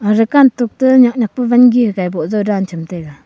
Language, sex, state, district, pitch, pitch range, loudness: Wancho, female, Arunachal Pradesh, Longding, 220 Hz, 185-245 Hz, -12 LUFS